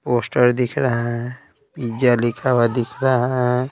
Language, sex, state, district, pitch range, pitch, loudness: Hindi, male, Bihar, Patna, 120-130 Hz, 125 Hz, -19 LUFS